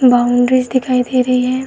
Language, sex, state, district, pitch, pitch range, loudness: Hindi, female, Uttar Pradesh, Varanasi, 255 Hz, 250-255 Hz, -14 LUFS